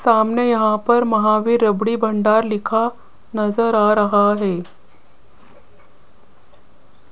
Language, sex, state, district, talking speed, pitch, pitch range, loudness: Hindi, female, Rajasthan, Jaipur, 95 wpm, 220 Hz, 210-230 Hz, -17 LUFS